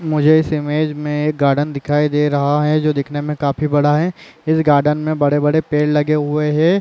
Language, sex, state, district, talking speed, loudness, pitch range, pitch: Chhattisgarhi, male, Chhattisgarh, Raigarh, 210 wpm, -16 LUFS, 145-155 Hz, 150 Hz